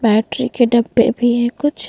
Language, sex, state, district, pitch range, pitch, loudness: Hindi, female, Bihar, Vaishali, 225-245 Hz, 240 Hz, -16 LUFS